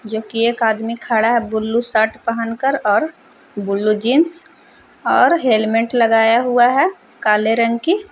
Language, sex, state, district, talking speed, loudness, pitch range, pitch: Hindi, female, Jharkhand, Palamu, 155 wpm, -16 LUFS, 220-255 Hz, 230 Hz